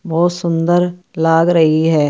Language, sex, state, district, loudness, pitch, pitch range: Marwari, female, Rajasthan, Churu, -14 LUFS, 165 Hz, 165-175 Hz